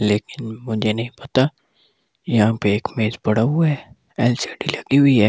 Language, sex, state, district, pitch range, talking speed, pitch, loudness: Hindi, male, Delhi, New Delhi, 110-135 Hz, 170 wpm, 115 Hz, -20 LUFS